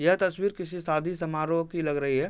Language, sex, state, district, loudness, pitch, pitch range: Hindi, male, Uttar Pradesh, Hamirpur, -28 LUFS, 165 Hz, 155-180 Hz